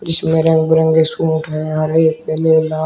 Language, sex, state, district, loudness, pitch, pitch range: Hindi, male, Uttar Pradesh, Shamli, -14 LUFS, 160 Hz, 155-160 Hz